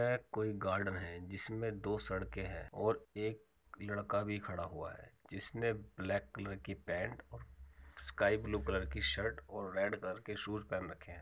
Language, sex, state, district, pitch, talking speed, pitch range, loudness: Hindi, male, Uttar Pradesh, Muzaffarnagar, 100 Hz, 185 wpm, 95-105 Hz, -40 LUFS